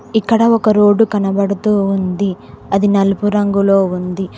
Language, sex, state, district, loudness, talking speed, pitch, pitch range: Telugu, female, Telangana, Mahabubabad, -14 LUFS, 125 wpm, 200 Hz, 195-210 Hz